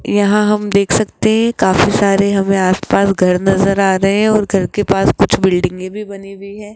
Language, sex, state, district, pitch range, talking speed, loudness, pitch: Hindi, female, Rajasthan, Jaipur, 195-205 Hz, 215 wpm, -13 LUFS, 200 Hz